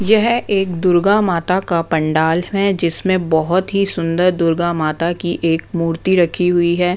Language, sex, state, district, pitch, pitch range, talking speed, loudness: Hindi, female, Bihar, West Champaran, 175 Hz, 165-190 Hz, 165 wpm, -16 LUFS